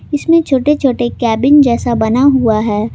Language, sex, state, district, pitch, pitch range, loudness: Hindi, female, Jharkhand, Palamu, 255 Hz, 225-280 Hz, -12 LUFS